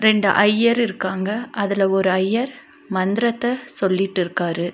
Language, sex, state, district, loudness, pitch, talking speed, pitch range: Tamil, female, Tamil Nadu, Nilgiris, -20 LUFS, 200 Hz, 100 wpm, 190-235 Hz